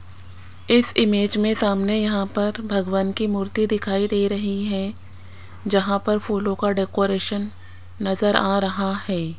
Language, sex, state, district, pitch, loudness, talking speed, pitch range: Hindi, female, Rajasthan, Jaipur, 200 Hz, -21 LUFS, 140 wpm, 190-205 Hz